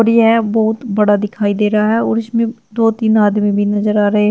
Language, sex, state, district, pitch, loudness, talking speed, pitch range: Hindi, female, Uttar Pradesh, Shamli, 215 Hz, -14 LUFS, 225 wpm, 210-225 Hz